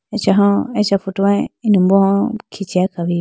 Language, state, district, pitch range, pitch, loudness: Idu Mishmi, Arunachal Pradesh, Lower Dibang Valley, 190-205 Hz, 195 Hz, -16 LUFS